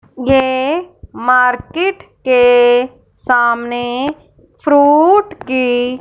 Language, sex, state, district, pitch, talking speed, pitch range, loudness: Hindi, male, Punjab, Fazilka, 255 Hz, 60 wpm, 245-295 Hz, -13 LUFS